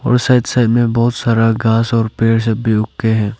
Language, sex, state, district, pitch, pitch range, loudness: Hindi, male, Arunachal Pradesh, Lower Dibang Valley, 115 Hz, 110-120 Hz, -14 LUFS